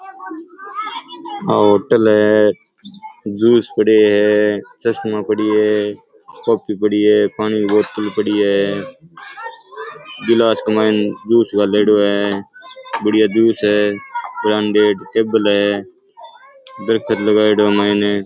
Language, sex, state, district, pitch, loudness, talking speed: Rajasthani, male, Rajasthan, Churu, 105 Hz, -15 LUFS, 110 wpm